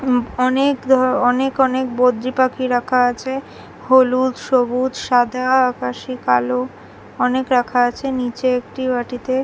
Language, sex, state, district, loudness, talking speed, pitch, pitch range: Bengali, female, West Bengal, Dakshin Dinajpur, -18 LUFS, 125 wpm, 255 Hz, 245-260 Hz